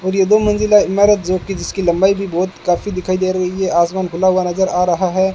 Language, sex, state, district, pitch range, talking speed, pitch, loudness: Hindi, male, Rajasthan, Bikaner, 180-195 Hz, 260 wpm, 185 Hz, -15 LUFS